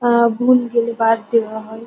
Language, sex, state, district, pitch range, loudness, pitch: Bengali, female, West Bengal, North 24 Parganas, 225-240 Hz, -16 LUFS, 230 Hz